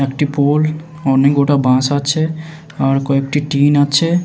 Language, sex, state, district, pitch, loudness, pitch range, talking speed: Bengali, male, West Bengal, Jalpaiguri, 145 Hz, -15 LUFS, 140-155 Hz, 155 wpm